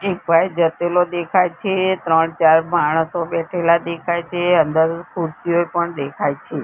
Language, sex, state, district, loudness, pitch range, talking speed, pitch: Gujarati, female, Gujarat, Gandhinagar, -18 LUFS, 165-175 Hz, 145 wpm, 170 Hz